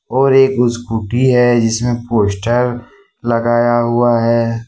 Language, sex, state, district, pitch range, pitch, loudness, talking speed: Hindi, male, Jharkhand, Ranchi, 115-120 Hz, 120 Hz, -14 LUFS, 115 wpm